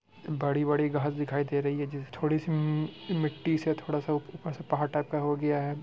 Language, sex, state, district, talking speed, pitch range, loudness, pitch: Hindi, male, Bihar, Muzaffarpur, 215 wpm, 145-155 Hz, -30 LUFS, 150 Hz